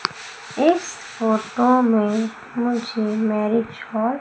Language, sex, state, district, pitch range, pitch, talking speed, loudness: Hindi, female, Madhya Pradesh, Umaria, 220-245 Hz, 225 Hz, 100 wpm, -21 LUFS